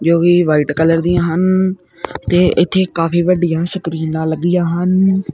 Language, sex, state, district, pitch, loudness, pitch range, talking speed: Punjabi, male, Punjab, Kapurthala, 175 Hz, -14 LUFS, 165-180 Hz, 145 wpm